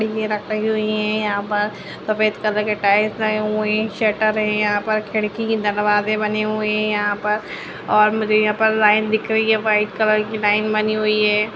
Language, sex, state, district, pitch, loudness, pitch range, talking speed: Hindi, female, Uttarakhand, Uttarkashi, 215 Hz, -19 LUFS, 210-215 Hz, 195 wpm